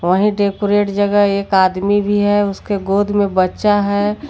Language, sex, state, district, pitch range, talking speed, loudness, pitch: Hindi, female, Jharkhand, Garhwa, 195-205 Hz, 165 wpm, -15 LUFS, 205 Hz